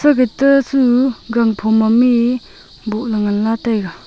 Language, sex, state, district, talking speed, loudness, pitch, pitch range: Wancho, female, Arunachal Pradesh, Longding, 160 wpm, -15 LUFS, 235 Hz, 220-255 Hz